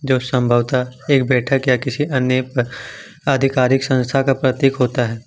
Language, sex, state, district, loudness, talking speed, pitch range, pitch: Hindi, male, Jharkhand, Ranchi, -17 LUFS, 160 wpm, 125-135 Hz, 130 Hz